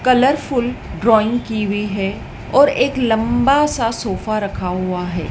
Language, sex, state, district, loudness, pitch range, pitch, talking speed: Hindi, female, Madhya Pradesh, Dhar, -17 LUFS, 200-255 Hz, 225 Hz, 160 wpm